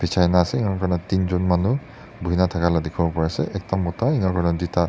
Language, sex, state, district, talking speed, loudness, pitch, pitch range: Nagamese, male, Nagaland, Dimapur, 220 wpm, -22 LUFS, 90 Hz, 85-95 Hz